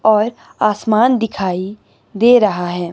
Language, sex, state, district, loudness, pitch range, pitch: Hindi, male, Himachal Pradesh, Shimla, -15 LUFS, 190-225 Hz, 215 Hz